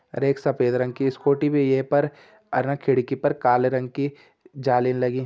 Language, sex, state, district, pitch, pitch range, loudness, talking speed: Hindi, male, Uttarakhand, Tehri Garhwal, 135 Hz, 125-140 Hz, -23 LUFS, 205 wpm